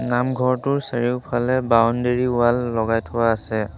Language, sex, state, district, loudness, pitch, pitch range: Assamese, male, Assam, Sonitpur, -20 LUFS, 120 Hz, 115-125 Hz